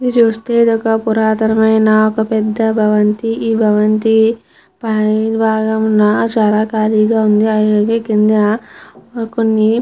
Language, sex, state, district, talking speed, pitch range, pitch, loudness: Telugu, female, Andhra Pradesh, Chittoor, 110 wpm, 215-225 Hz, 220 Hz, -13 LUFS